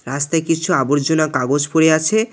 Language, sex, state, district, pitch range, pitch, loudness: Bengali, male, West Bengal, Alipurduar, 145-165 Hz, 160 Hz, -16 LUFS